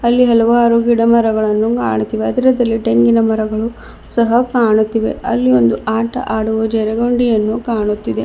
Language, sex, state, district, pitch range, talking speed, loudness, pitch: Kannada, female, Karnataka, Bidar, 215-235 Hz, 125 wpm, -14 LUFS, 225 Hz